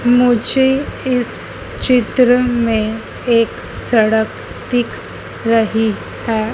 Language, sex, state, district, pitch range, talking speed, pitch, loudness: Hindi, female, Madhya Pradesh, Dhar, 225-250 Hz, 80 wpm, 235 Hz, -16 LUFS